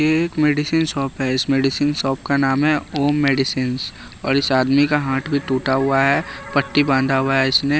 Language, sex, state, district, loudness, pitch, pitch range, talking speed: Hindi, male, Bihar, West Champaran, -18 LUFS, 140 Hz, 135-145 Hz, 210 wpm